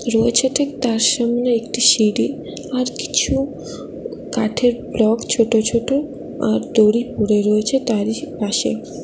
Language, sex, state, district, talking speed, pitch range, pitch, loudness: Bengali, female, West Bengal, Alipurduar, 120 wpm, 220-260 Hz, 235 Hz, -18 LUFS